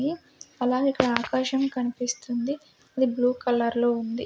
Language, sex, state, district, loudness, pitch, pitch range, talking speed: Telugu, female, Andhra Pradesh, Sri Satya Sai, -26 LUFS, 250 Hz, 240-265 Hz, 125 wpm